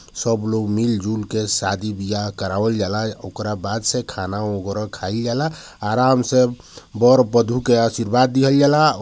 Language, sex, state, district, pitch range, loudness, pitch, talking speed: Bhojpuri, male, Bihar, Gopalganj, 105-125 Hz, -19 LUFS, 110 Hz, 155 wpm